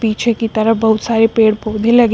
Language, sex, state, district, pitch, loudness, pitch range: Hindi, female, Uttar Pradesh, Shamli, 225 Hz, -14 LUFS, 220-230 Hz